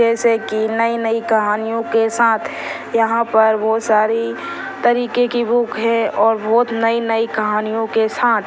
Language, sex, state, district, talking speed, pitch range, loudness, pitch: Hindi, female, Bihar, Saran, 140 wpm, 220-230 Hz, -17 LUFS, 225 Hz